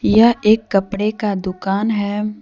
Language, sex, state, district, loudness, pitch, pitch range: Hindi, female, Jharkhand, Deoghar, -17 LUFS, 210 Hz, 195-215 Hz